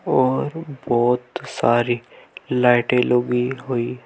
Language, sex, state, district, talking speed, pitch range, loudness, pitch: Hindi, male, Uttar Pradesh, Saharanpur, 105 wpm, 120-130 Hz, -20 LUFS, 125 Hz